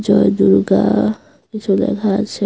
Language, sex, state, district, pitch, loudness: Bengali, female, Tripura, Unakoti, 150 Hz, -15 LUFS